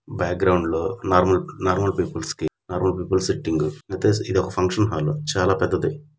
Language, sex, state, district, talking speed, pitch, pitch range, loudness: Telugu, male, Andhra Pradesh, Guntur, 115 wpm, 95 Hz, 90-105 Hz, -22 LUFS